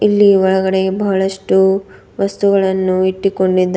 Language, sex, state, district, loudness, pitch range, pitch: Kannada, female, Karnataka, Bidar, -14 LUFS, 190-195 Hz, 190 Hz